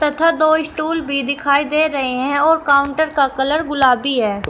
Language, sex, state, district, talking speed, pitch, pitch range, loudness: Hindi, female, Uttar Pradesh, Shamli, 185 wpm, 285 Hz, 275-310 Hz, -16 LUFS